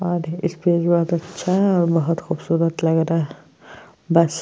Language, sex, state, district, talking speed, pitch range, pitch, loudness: Hindi, female, Uttar Pradesh, Jyotiba Phule Nagar, 175 wpm, 165-175 Hz, 170 Hz, -20 LUFS